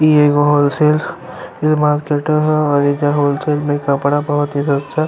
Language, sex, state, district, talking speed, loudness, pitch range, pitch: Bhojpuri, male, Uttar Pradesh, Ghazipur, 200 wpm, -15 LUFS, 145-150 Hz, 145 Hz